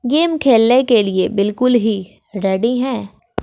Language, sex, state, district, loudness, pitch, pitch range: Hindi, female, Bihar, West Champaran, -15 LUFS, 230 Hz, 205-250 Hz